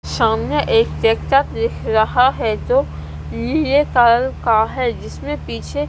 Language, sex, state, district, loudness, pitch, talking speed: Hindi, female, Punjab, Kapurthala, -17 LUFS, 225 Hz, 130 wpm